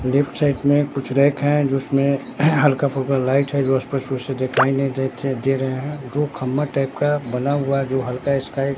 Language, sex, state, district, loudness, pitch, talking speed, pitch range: Hindi, male, Bihar, Katihar, -20 LUFS, 135 Hz, 210 wpm, 135-140 Hz